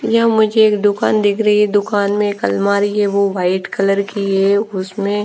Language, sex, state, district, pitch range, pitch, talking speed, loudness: Hindi, female, Punjab, Fazilka, 200-210 Hz, 205 Hz, 205 wpm, -15 LUFS